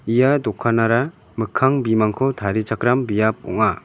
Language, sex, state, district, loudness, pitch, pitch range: Garo, male, Meghalaya, West Garo Hills, -19 LUFS, 115 Hz, 110-130 Hz